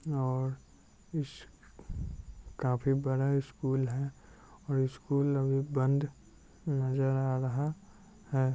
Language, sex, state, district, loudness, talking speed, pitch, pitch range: Hindi, male, Bihar, Darbhanga, -32 LUFS, 100 wpm, 135 Hz, 130-140 Hz